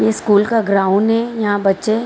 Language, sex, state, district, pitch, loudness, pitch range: Hindi, female, Bihar, Saharsa, 205 Hz, -15 LUFS, 195-225 Hz